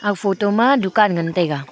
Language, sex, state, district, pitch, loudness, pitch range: Wancho, female, Arunachal Pradesh, Longding, 200 Hz, -17 LUFS, 170-210 Hz